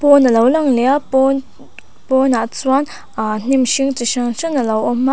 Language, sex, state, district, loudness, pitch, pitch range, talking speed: Mizo, female, Mizoram, Aizawl, -15 LUFS, 265 Hz, 240-275 Hz, 200 wpm